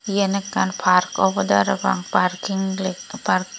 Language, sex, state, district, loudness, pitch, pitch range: Chakma, female, Tripura, Dhalai, -21 LUFS, 185 Hz, 180-195 Hz